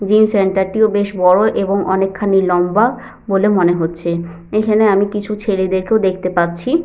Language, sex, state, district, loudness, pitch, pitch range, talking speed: Bengali, female, West Bengal, Paschim Medinipur, -15 LUFS, 195 Hz, 185-210 Hz, 160 wpm